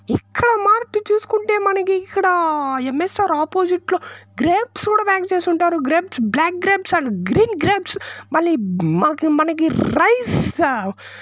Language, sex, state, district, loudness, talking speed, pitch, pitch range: Telugu, female, Andhra Pradesh, Chittoor, -18 LUFS, 125 wpm, 360 Hz, 315-410 Hz